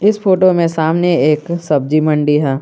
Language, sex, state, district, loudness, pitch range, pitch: Hindi, male, Jharkhand, Garhwa, -14 LUFS, 150-175 Hz, 160 Hz